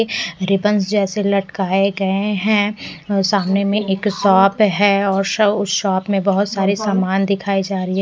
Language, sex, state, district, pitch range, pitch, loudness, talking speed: Hindi, female, Bihar, West Champaran, 195-205 Hz, 200 Hz, -17 LUFS, 155 wpm